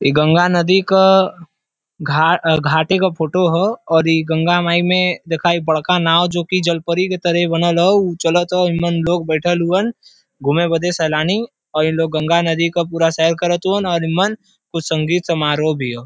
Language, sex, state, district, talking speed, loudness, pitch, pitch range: Bhojpuri, male, Uttar Pradesh, Varanasi, 190 wpm, -16 LUFS, 170 Hz, 160-180 Hz